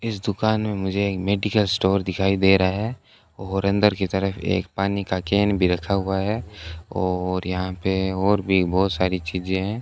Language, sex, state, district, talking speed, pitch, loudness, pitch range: Hindi, male, Rajasthan, Bikaner, 195 wpm, 95 Hz, -22 LUFS, 95-100 Hz